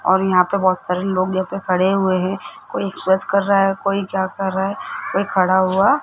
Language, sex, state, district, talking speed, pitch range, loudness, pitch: Hindi, male, Rajasthan, Jaipur, 240 wpm, 185-195 Hz, -18 LUFS, 190 Hz